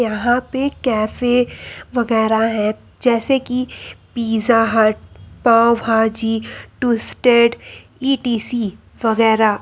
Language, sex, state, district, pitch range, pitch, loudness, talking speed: Hindi, male, Uttar Pradesh, Lucknow, 220-245 Hz, 230 Hz, -17 LUFS, 95 wpm